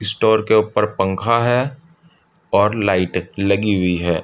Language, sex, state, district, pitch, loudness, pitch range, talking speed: Hindi, male, Uttar Pradesh, Budaun, 105 Hz, -17 LUFS, 95-115 Hz, 140 wpm